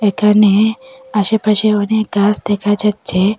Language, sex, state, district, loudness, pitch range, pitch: Bengali, female, Assam, Hailakandi, -13 LUFS, 205-215 Hz, 210 Hz